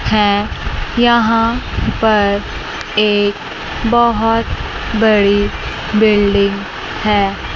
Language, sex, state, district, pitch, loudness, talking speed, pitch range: Hindi, female, Chandigarh, Chandigarh, 210 Hz, -15 LUFS, 65 wpm, 205-225 Hz